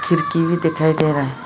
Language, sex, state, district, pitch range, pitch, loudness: Hindi, female, Arunachal Pradesh, Lower Dibang Valley, 150-165 Hz, 160 Hz, -18 LUFS